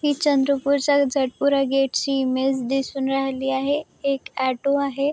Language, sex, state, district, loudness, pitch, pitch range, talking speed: Marathi, female, Maharashtra, Chandrapur, -22 LUFS, 275 Hz, 270-280 Hz, 150 wpm